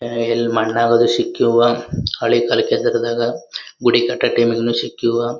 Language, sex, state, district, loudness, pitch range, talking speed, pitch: Kannada, male, Karnataka, Gulbarga, -17 LUFS, 115-120 Hz, 145 wpm, 120 Hz